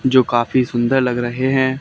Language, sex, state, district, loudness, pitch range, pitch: Hindi, male, Haryana, Charkhi Dadri, -17 LUFS, 120-130 Hz, 130 Hz